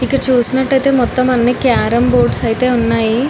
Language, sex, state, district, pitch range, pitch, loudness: Telugu, female, Telangana, Nalgonda, 230-260 Hz, 250 Hz, -13 LUFS